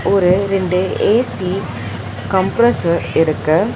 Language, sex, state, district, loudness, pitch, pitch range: Tamil, female, Tamil Nadu, Chennai, -16 LUFS, 180 Hz, 155-195 Hz